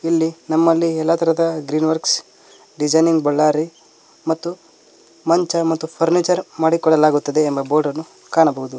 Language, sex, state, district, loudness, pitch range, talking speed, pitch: Kannada, male, Karnataka, Koppal, -18 LUFS, 155-165 Hz, 115 wpm, 160 Hz